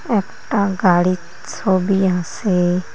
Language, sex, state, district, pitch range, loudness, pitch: Bengali, female, West Bengal, Cooch Behar, 180-200 Hz, -18 LUFS, 190 Hz